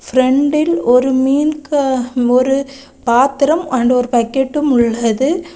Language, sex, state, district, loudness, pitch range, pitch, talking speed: Tamil, female, Tamil Nadu, Kanyakumari, -14 LUFS, 250-290 Hz, 265 Hz, 95 wpm